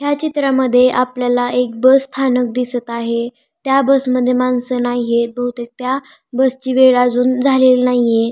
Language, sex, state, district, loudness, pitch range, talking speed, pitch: Marathi, female, Maharashtra, Pune, -15 LUFS, 245-260 Hz, 150 wpm, 250 Hz